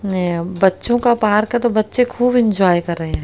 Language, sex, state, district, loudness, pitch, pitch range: Hindi, female, Haryana, Rohtak, -16 LUFS, 210 Hz, 180-240 Hz